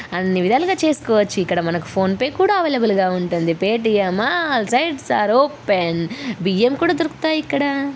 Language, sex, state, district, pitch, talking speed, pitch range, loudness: Telugu, female, Telangana, Karimnagar, 225 Hz, 150 wpm, 190-290 Hz, -18 LUFS